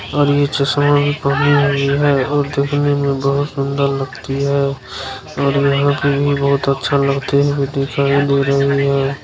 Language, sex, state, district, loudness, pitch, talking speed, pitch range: Hindi, male, Bihar, Araria, -16 LUFS, 140 Hz, 170 wpm, 140-145 Hz